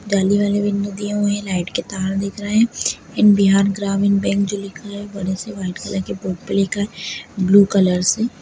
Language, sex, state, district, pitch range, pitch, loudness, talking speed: Hindi, female, Bihar, Begusarai, 195-205 Hz, 200 Hz, -19 LUFS, 220 wpm